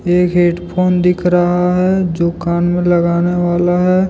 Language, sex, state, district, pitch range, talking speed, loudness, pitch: Hindi, male, Jharkhand, Deoghar, 175-180 Hz, 175 wpm, -14 LUFS, 175 Hz